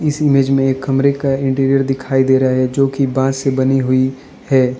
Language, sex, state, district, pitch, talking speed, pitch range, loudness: Hindi, male, Arunachal Pradesh, Lower Dibang Valley, 135 Hz, 215 wpm, 130-135 Hz, -15 LUFS